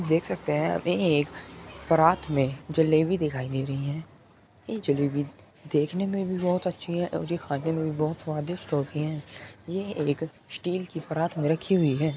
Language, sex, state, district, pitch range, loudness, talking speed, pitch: Hindi, male, Uttar Pradesh, Muzaffarnagar, 145-170 Hz, -27 LUFS, 185 wpm, 155 Hz